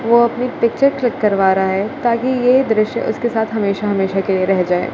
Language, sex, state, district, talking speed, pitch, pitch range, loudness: Hindi, female, Gujarat, Gandhinagar, 220 wpm, 220 Hz, 195-245 Hz, -16 LUFS